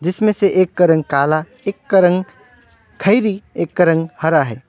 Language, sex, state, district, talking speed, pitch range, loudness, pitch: Hindi, male, West Bengal, Alipurduar, 165 wpm, 160-200 Hz, -16 LUFS, 180 Hz